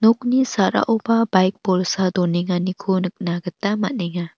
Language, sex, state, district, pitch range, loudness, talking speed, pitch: Garo, female, Meghalaya, North Garo Hills, 180-220 Hz, -20 LUFS, 110 wpm, 185 Hz